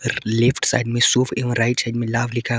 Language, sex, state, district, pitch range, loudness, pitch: Hindi, male, Jharkhand, Garhwa, 115-125 Hz, -19 LUFS, 120 Hz